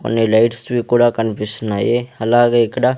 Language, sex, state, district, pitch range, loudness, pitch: Telugu, male, Andhra Pradesh, Sri Satya Sai, 110-120 Hz, -16 LUFS, 115 Hz